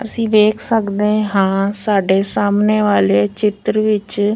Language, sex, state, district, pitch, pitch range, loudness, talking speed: Punjabi, female, Punjab, Fazilka, 210 Hz, 195-215 Hz, -15 LUFS, 135 wpm